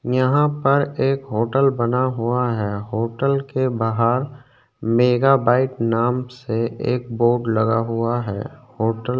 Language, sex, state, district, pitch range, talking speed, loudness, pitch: Hindi, male, Uttarakhand, Tehri Garhwal, 115-130 Hz, 135 wpm, -20 LUFS, 125 Hz